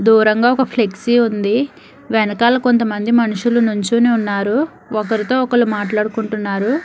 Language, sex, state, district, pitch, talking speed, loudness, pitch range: Telugu, female, Telangana, Hyderabad, 225 Hz, 105 wpm, -16 LUFS, 210-240 Hz